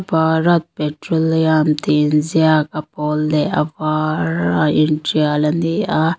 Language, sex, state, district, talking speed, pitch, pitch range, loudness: Mizo, female, Mizoram, Aizawl, 145 wpm, 155 Hz, 150-160 Hz, -17 LUFS